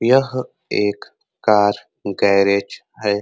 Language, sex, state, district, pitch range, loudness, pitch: Hindi, male, Uttar Pradesh, Ghazipur, 100-115 Hz, -18 LUFS, 105 Hz